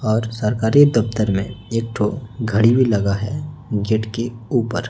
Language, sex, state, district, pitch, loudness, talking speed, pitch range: Hindi, male, Chhattisgarh, Raipur, 115 Hz, -19 LUFS, 160 wpm, 105-120 Hz